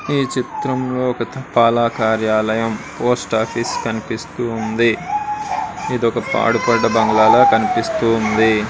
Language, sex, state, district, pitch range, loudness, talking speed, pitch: Telugu, male, Andhra Pradesh, Srikakulam, 110-135 Hz, -17 LUFS, 95 wpm, 115 Hz